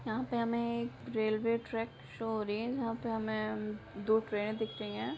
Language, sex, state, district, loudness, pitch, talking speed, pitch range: Hindi, female, Bihar, Madhepura, -35 LUFS, 220 Hz, 210 wpm, 215-230 Hz